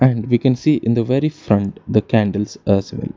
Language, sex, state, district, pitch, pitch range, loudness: English, male, Karnataka, Bangalore, 115 Hz, 105-130 Hz, -18 LUFS